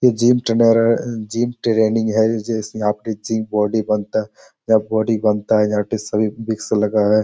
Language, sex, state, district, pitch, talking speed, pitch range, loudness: Hindi, male, Bihar, Jamui, 110 Hz, 165 wpm, 105-115 Hz, -18 LUFS